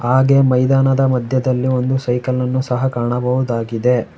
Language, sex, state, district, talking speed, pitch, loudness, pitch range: Kannada, male, Karnataka, Bangalore, 115 wpm, 125 Hz, -16 LUFS, 125-130 Hz